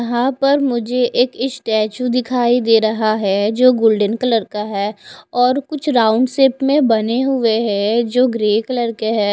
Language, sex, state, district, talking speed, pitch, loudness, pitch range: Hindi, female, Odisha, Khordha, 175 wpm, 235 Hz, -16 LUFS, 220-255 Hz